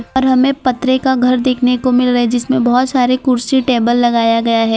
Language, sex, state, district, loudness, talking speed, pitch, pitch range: Hindi, female, Gujarat, Valsad, -13 LUFS, 215 wpm, 250 Hz, 240-260 Hz